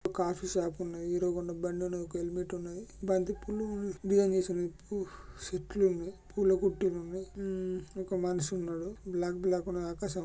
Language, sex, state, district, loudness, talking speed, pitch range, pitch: Telugu, male, Andhra Pradesh, Guntur, -34 LUFS, 145 wpm, 175-195 Hz, 185 Hz